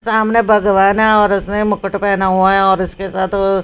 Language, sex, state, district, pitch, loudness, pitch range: Hindi, female, Haryana, Rohtak, 200 Hz, -13 LUFS, 195-210 Hz